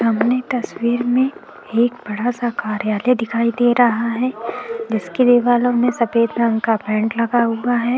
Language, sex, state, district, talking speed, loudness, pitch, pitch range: Hindi, female, Uttarakhand, Tehri Garhwal, 160 wpm, -18 LUFS, 235 Hz, 230-245 Hz